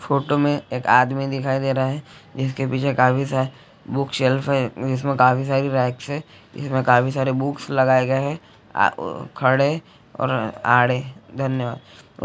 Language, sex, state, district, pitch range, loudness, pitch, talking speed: Hindi, male, Chhattisgarh, Bilaspur, 130-140 Hz, -21 LUFS, 135 Hz, 150 wpm